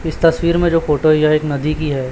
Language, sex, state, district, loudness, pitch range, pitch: Hindi, male, Chhattisgarh, Raipur, -15 LUFS, 150-165 Hz, 155 Hz